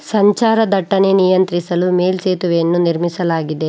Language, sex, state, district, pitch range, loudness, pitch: Kannada, female, Karnataka, Bangalore, 175-195 Hz, -15 LUFS, 180 Hz